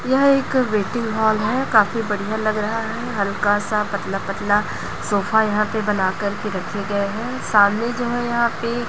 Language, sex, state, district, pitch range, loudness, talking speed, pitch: Hindi, female, Chhattisgarh, Raipur, 205-235 Hz, -20 LUFS, 180 wpm, 215 Hz